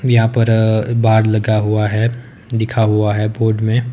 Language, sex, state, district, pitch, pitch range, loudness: Hindi, male, Himachal Pradesh, Shimla, 110 Hz, 110-115 Hz, -15 LUFS